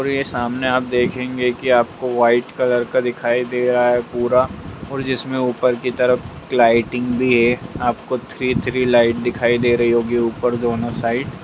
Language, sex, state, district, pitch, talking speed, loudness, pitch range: Hindi, male, Bihar, Jamui, 125 Hz, 185 wpm, -18 LUFS, 120-125 Hz